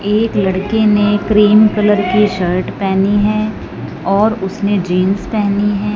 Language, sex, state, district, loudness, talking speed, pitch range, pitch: Hindi, female, Punjab, Fazilka, -14 LUFS, 140 wpm, 195-210 Hz, 205 Hz